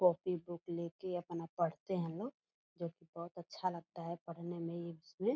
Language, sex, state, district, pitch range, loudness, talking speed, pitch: Hindi, female, Bihar, Purnia, 170-180 Hz, -42 LUFS, 200 wpm, 170 Hz